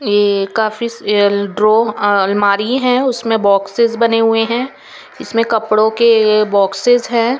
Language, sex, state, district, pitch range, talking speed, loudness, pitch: Hindi, female, Chandigarh, Chandigarh, 205-235 Hz, 130 wpm, -13 LUFS, 220 Hz